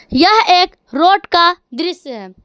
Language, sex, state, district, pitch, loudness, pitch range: Hindi, female, Jharkhand, Garhwa, 345 Hz, -12 LUFS, 265-360 Hz